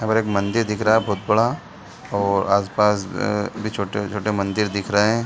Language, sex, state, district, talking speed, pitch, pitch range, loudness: Hindi, male, Bihar, Gaya, 205 wpm, 105 Hz, 100-110 Hz, -21 LUFS